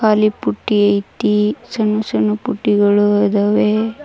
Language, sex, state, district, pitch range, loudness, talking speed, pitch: Kannada, female, Karnataka, Koppal, 205-215 Hz, -16 LUFS, 90 wpm, 210 Hz